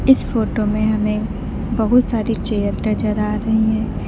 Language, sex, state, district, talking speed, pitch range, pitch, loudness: Hindi, female, Uttar Pradesh, Lalitpur, 160 wpm, 210-225 Hz, 220 Hz, -19 LUFS